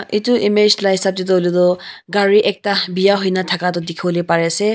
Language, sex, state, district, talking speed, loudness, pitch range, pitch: Nagamese, female, Nagaland, Kohima, 240 wpm, -16 LUFS, 175-200 Hz, 190 Hz